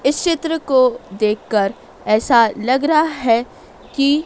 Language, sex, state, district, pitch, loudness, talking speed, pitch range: Hindi, female, Madhya Pradesh, Dhar, 255 Hz, -17 LUFS, 125 wpm, 220-295 Hz